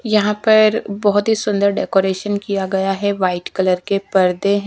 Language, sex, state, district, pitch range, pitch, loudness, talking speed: Hindi, female, Punjab, Kapurthala, 190-210 Hz, 200 Hz, -17 LUFS, 180 wpm